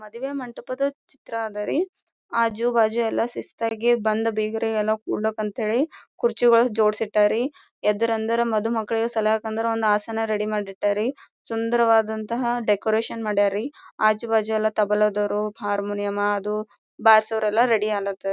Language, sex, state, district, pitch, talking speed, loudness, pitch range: Kannada, female, Karnataka, Gulbarga, 220 Hz, 125 wpm, -23 LUFS, 215-235 Hz